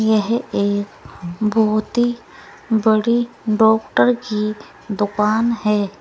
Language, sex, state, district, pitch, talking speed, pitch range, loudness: Hindi, female, Uttar Pradesh, Saharanpur, 215 Hz, 90 wpm, 210-230 Hz, -18 LUFS